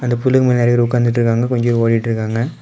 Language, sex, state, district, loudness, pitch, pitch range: Tamil, male, Tamil Nadu, Kanyakumari, -15 LUFS, 120 Hz, 115-125 Hz